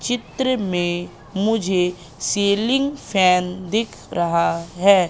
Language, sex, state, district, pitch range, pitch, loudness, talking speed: Hindi, female, Madhya Pradesh, Katni, 175-220 Hz, 190 Hz, -20 LUFS, 95 wpm